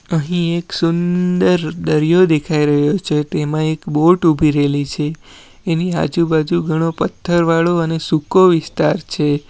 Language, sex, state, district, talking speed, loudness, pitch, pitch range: Gujarati, male, Gujarat, Valsad, 130 wpm, -16 LUFS, 160 Hz, 150-170 Hz